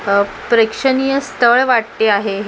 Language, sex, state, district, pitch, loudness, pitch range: Marathi, female, Maharashtra, Mumbai Suburban, 230 Hz, -14 LUFS, 205-260 Hz